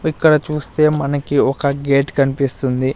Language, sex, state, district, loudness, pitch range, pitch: Telugu, male, Andhra Pradesh, Sri Satya Sai, -17 LUFS, 140-150 Hz, 140 Hz